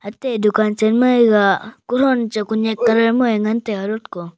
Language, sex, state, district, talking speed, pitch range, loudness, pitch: Wancho, male, Arunachal Pradesh, Longding, 165 wpm, 210-235 Hz, -17 LUFS, 220 Hz